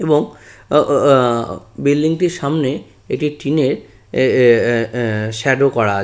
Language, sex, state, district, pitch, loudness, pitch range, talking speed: Bengali, male, West Bengal, Purulia, 135 Hz, -16 LUFS, 115-150 Hz, 160 wpm